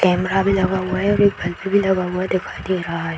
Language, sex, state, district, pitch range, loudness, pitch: Hindi, female, Uttar Pradesh, Hamirpur, 180-195 Hz, -19 LUFS, 185 Hz